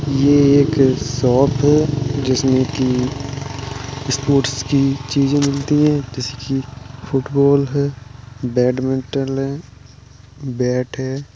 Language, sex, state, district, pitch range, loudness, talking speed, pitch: Hindi, male, Uttar Pradesh, Jalaun, 125-140 Hz, -18 LUFS, 100 wpm, 135 Hz